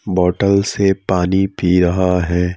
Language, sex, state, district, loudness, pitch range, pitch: Hindi, male, Madhya Pradesh, Bhopal, -16 LUFS, 90-95 Hz, 90 Hz